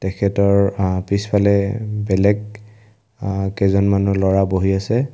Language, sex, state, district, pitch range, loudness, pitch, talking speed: Assamese, male, Assam, Kamrup Metropolitan, 95-105 Hz, -18 LUFS, 100 Hz, 105 wpm